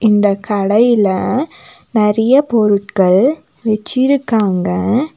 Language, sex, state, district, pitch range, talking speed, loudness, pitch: Tamil, female, Tamil Nadu, Nilgiris, 200-255 Hz, 60 wpm, -14 LUFS, 215 Hz